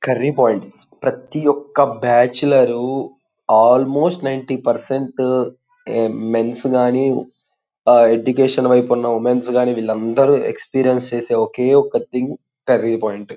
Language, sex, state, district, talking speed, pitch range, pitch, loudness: Telugu, male, Andhra Pradesh, Guntur, 115 wpm, 120-135 Hz, 125 Hz, -17 LUFS